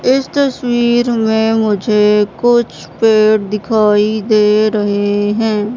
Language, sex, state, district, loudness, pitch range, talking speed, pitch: Hindi, female, Madhya Pradesh, Katni, -13 LUFS, 210-235 Hz, 105 wpm, 215 Hz